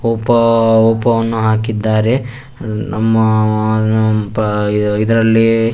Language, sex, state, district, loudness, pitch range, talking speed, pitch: Kannada, male, Karnataka, Shimoga, -14 LUFS, 110-115 Hz, 85 wpm, 110 Hz